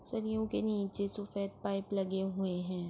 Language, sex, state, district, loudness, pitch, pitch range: Urdu, female, Andhra Pradesh, Anantapur, -36 LUFS, 200 Hz, 190-205 Hz